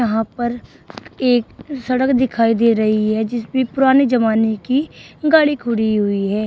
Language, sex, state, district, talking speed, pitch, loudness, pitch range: Hindi, female, Uttar Pradesh, Shamli, 150 wpm, 240 Hz, -17 LUFS, 220-260 Hz